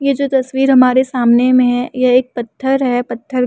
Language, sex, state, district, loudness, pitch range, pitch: Hindi, female, Uttar Pradesh, Muzaffarnagar, -13 LUFS, 245-265 Hz, 255 Hz